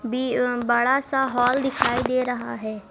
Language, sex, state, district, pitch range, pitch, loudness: Hindi, male, Uttar Pradesh, Lucknow, 240-260 Hz, 245 Hz, -22 LUFS